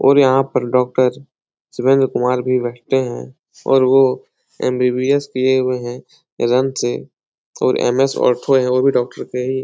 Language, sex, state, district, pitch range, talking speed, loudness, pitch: Hindi, male, Bihar, Jahanabad, 125-135 Hz, 155 wpm, -17 LUFS, 130 Hz